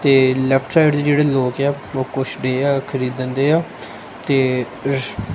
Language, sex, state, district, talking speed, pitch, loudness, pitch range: Punjabi, male, Punjab, Kapurthala, 180 wpm, 135 Hz, -18 LUFS, 130-140 Hz